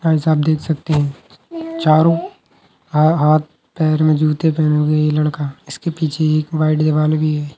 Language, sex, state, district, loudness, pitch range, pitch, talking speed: Hindi, male, Uttar Pradesh, Ghazipur, -16 LUFS, 150-160 Hz, 155 Hz, 175 wpm